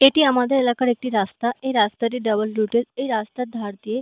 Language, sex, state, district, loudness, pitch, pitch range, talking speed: Bengali, female, West Bengal, North 24 Parganas, -21 LUFS, 240 Hz, 215-255 Hz, 195 wpm